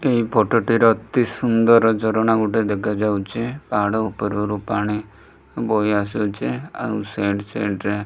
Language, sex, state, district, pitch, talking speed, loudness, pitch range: Odia, male, Odisha, Malkangiri, 105 Hz, 110 wpm, -20 LUFS, 105-115 Hz